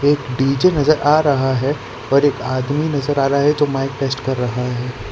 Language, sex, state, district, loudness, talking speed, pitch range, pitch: Hindi, male, Gujarat, Valsad, -17 LUFS, 225 wpm, 130-145 Hz, 135 Hz